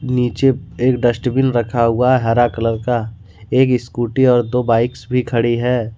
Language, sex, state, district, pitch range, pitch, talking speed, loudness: Hindi, male, Jharkhand, Ranchi, 115-125 Hz, 120 Hz, 170 wpm, -16 LUFS